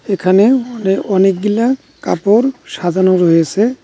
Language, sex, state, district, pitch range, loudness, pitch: Bengali, male, West Bengal, Cooch Behar, 185-235 Hz, -13 LUFS, 195 Hz